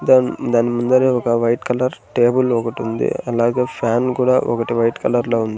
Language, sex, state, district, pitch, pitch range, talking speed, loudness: Telugu, male, Andhra Pradesh, Sri Satya Sai, 120 Hz, 115-125 Hz, 185 wpm, -18 LUFS